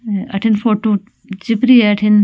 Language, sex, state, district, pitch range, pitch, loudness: Marwari, female, Rajasthan, Nagaur, 205-225 Hz, 215 Hz, -14 LUFS